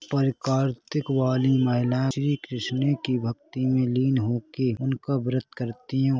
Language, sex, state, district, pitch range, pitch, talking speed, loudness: Hindi, male, Chhattisgarh, Korba, 125-135 Hz, 130 Hz, 135 wpm, -25 LUFS